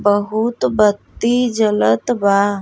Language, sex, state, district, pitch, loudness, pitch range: Bhojpuri, female, Uttar Pradesh, Gorakhpur, 210 Hz, -16 LUFS, 200-230 Hz